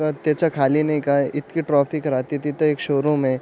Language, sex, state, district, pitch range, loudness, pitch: Marathi, male, Maharashtra, Aurangabad, 140-155 Hz, -21 LUFS, 150 Hz